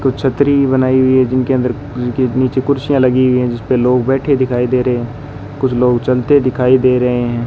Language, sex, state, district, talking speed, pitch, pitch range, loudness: Hindi, male, Rajasthan, Bikaner, 215 wpm, 130 Hz, 125-130 Hz, -14 LUFS